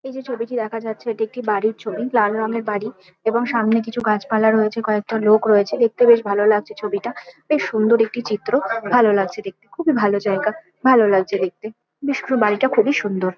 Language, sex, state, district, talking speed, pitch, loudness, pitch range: Bengali, female, West Bengal, Kolkata, 195 wpm, 220 Hz, -19 LUFS, 210-235 Hz